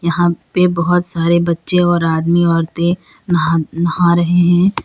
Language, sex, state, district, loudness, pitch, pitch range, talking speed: Hindi, female, Uttar Pradesh, Lalitpur, -14 LUFS, 170 Hz, 170-175 Hz, 150 wpm